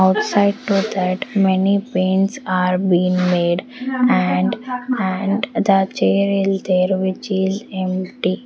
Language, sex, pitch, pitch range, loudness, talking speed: English, female, 190 Hz, 185-205 Hz, -18 LUFS, 90 wpm